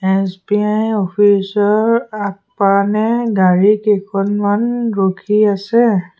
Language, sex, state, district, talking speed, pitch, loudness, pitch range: Assamese, male, Assam, Sonitpur, 75 wpm, 205 Hz, -15 LUFS, 195-215 Hz